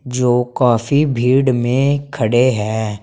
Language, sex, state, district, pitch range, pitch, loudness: Hindi, male, Uttar Pradesh, Saharanpur, 120-135 Hz, 125 Hz, -16 LUFS